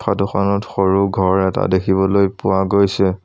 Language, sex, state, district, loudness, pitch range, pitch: Assamese, male, Assam, Sonitpur, -16 LUFS, 95-100 Hz, 95 Hz